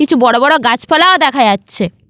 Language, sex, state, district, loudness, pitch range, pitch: Bengali, female, West Bengal, Paschim Medinipur, -10 LUFS, 245-320 Hz, 305 Hz